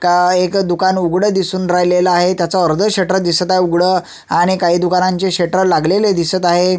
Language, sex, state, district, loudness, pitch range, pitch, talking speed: Marathi, male, Maharashtra, Sindhudurg, -14 LUFS, 175-185 Hz, 180 Hz, 175 wpm